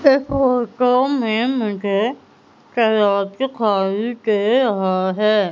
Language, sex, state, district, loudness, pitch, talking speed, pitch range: Hindi, female, Madhya Pradesh, Umaria, -18 LUFS, 225 Hz, 100 wpm, 205-255 Hz